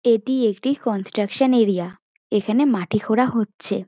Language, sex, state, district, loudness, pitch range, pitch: Bengali, female, West Bengal, North 24 Parganas, -21 LUFS, 205-250 Hz, 220 Hz